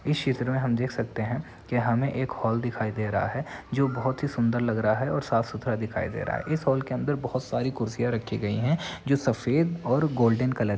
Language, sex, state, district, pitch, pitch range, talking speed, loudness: Hindi, male, Uttar Pradesh, Ghazipur, 125 Hz, 115-135 Hz, 250 wpm, -27 LUFS